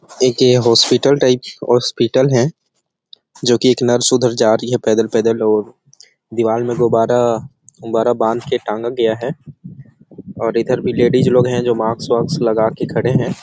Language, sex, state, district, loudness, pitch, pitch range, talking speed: Hindi, male, Chhattisgarh, Sarguja, -15 LUFS, 120 Hz, 115-130 Hz, 170 wpm